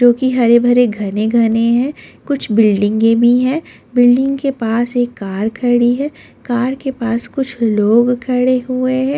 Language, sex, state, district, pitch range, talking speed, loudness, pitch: Hindi, female, Delhi, New Delhi, 230-255 Hz, 170 wpm, -14 LUFS, 245 Hz